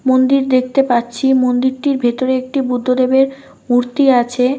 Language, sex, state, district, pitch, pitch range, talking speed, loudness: Bengali, female, West Bengal, North 24 Parganas, 255 Hz, 250-270 Hz, 115 wpm, -15 LUFS